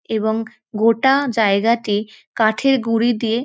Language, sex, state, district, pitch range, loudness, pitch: Bengali, female, West Bengal, North 24 Parganas, 220-240 Hz, -18 LUFS, 230 Hz